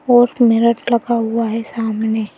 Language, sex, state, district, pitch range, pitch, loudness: Hindi, female, Madhya Pradesh, Bhopal, 225-235 Hz, 230 Hz, -16 LUFS